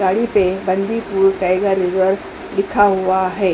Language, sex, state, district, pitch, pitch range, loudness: Hindi, female, Uttar Pradesh, Hamirpur, 195 Hz, 185-200 Hz, -17 LUFS